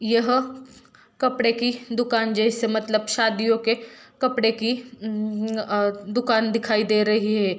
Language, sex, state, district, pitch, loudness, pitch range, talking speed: Hindi, female, Jharkhand, Jamtara, 230 Hz, -23 LUFS, 215-245 Hz, 135 wpm